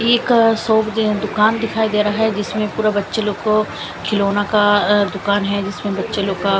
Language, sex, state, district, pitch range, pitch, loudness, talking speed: Hindi, female, Chandigarh, Chandigarh, 205-220 Hz, 210 Hz, -17 LUFS, 220 wpm